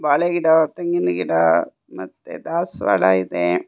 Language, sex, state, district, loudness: Kannada, female, Karnataka, Bangalore, -19 LUFS